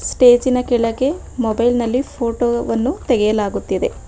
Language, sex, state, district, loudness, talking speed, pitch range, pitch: Kannada, female, Karnataka, Bangalore, -17 LUFS, 105 wpm, 230-255 Hz, 240 Hz